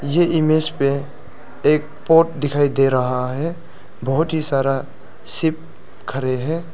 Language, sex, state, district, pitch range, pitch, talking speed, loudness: Hindi, male, Arunachal Pradesh, Lower Dibang Valley, 135-160 Hz, 145 Hz, 135 wpm, -19 LUFS